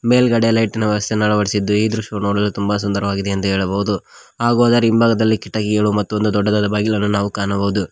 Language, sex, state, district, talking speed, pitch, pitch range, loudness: Kannada, male, Karnataka, Koppal, 160 wpm, 105 Hz, 100-110 Hz, -17 LUFS